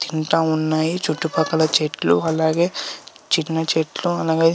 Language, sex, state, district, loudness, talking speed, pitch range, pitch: Telugu, male, Andhra Pradesh, Visakhapatnam, -20 LUFS, 105 wpm, 155-165 Hz, 160 Hz